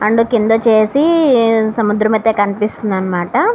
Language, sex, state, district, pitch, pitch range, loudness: Telugu, female, Andhra Pradesh, Srikakulam, 220 Hz, 210-230 Hz, -13 LUFS